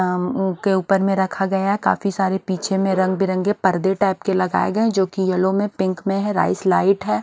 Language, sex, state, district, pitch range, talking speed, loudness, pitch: Hindi, male, Odisha, Nuapada, 185-195 Hz, 240 wpm, -19 LUFS, 190 Hz